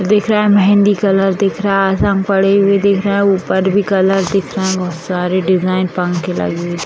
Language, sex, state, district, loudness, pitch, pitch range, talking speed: Hindi, female, Bihar, Purnia, -14 LUFS, 195 Hz, 185-200 Hz, 235 wpm